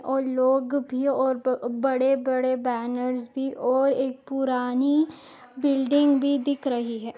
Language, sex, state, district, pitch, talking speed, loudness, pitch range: Hindi, female, Goa, North and South Goa, 265 Hz, 135 wpm, -24 LUFS, 255-275 Hz